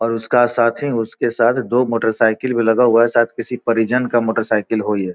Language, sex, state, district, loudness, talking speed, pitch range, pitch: Hindi, male, Bihar, Gopalganj, -17 LUFS, 210 wpm, 110-120 Hz, 115 Hz